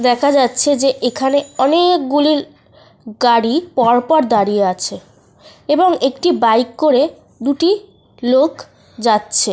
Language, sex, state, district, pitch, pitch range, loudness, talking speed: Bengali, female, Jharkhand, Sahebganj, 265 Hz, 235-305 Hz, -15 LUFS, 80 wpm